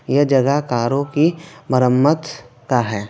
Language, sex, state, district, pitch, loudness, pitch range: Hindi, male, West Bengal, Alipurduar, 135 Hz, -17 LUFS, 125-150 Hz